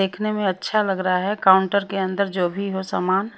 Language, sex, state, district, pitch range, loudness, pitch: Hindi, female, Haryana, Rohtak, 190-200 Hz, -21 LUFS, 195 Hz